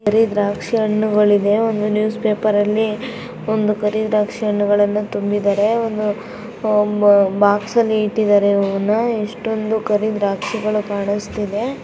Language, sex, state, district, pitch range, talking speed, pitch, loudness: Kannada, female, Karnataka, Chamarajanagar, 205-220 Hz, 105 wpm, 210 Hz, -18 LUFS